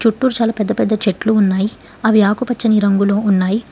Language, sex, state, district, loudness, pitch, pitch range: Telugu, female, Telangana, Hyderabad, -15 LUFS, 215 Hz, 200-225 Hz